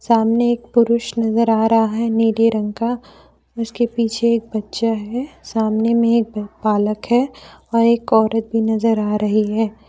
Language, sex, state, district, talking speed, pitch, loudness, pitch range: Hindi, female, Jharkhand, Deoghar, 170 wpm, 225 Hz, -18 LUFS, 220-235 Hz